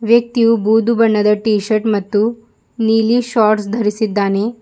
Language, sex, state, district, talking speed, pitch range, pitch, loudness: Kannada, female, Karnataka, Bidar, 115 wpm, 210-230 Hz, 220 Hz, -15 LUFS